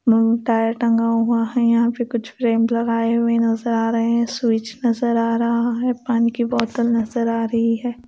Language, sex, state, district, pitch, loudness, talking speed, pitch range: Hindi, female, Punjab, Pathankot, 230 Hz, -19 LUFS, 195 wpm, 230-235 Hz